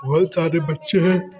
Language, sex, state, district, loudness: Hindi, male, Uttar Pradesh, Hamirpur, -19 LUFS